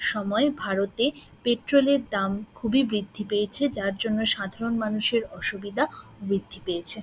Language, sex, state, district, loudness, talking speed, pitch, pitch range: Bengali, female, West Bengal, Dakshin Dinajpur, -26 LUFS, 130 wpm, 215 Hz, 200-240 Hz